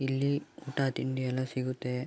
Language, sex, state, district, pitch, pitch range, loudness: Kannada, male, Karnataka, Mysore, 130 Hz, 130-135 Hz, -33 LUFS